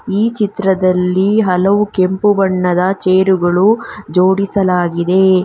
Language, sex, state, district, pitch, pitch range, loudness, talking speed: Kannada, female, Karnataka, Bangalore, 190 Hz, 180-200 Hz, -13 LUFS, 75 wpm